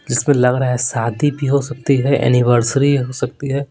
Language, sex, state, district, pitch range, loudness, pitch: Hindi, male, Bihar, Patna, 125-140 Hz, -16 LUFS, 135 Hz